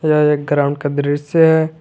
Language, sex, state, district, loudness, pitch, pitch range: Hindi, male, Jharkhand, Garhwa, -15 LUFS, 150 Hz, 145-160 Hz